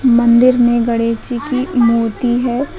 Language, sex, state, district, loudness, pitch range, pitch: Hindi, female, Uttar Pradesh, Lucknow, -14 LUFS, 235-255 Hz, 240 Hz